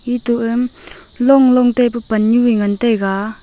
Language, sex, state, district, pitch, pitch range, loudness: Wancho, female, Arunachal Pradesh, Longding, 240 Hz, 220-250 Hz, -14 LUFS